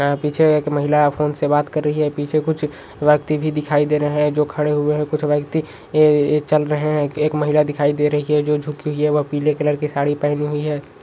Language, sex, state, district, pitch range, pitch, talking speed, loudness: Magahi, male, Bihar, Gaya, 145-150 Hz, 150 Hz, 255 wpm, -18 LUFS